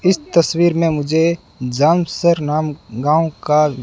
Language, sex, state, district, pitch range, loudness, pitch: Hindi, male, Rajasthan, Bikaner, 150-170 Hz, -16 LUFS, 160 Hz